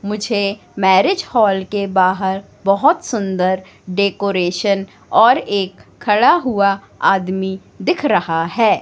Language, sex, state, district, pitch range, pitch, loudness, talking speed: Hindi, female, Madhya Pradesh, Katni, 190-210 Hz, 200 Hz, -16 LUFS, 110 wpm